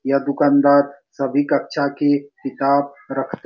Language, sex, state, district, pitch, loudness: Hindi, male, Bihar, Supaul, 140 Hz, -19 LUFS